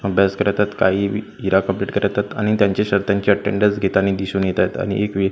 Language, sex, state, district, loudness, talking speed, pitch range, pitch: Marathi, male, Maharashtra, Gondia, -19 LUFS, 225 wpm, 95-105 Hz, 100 Hz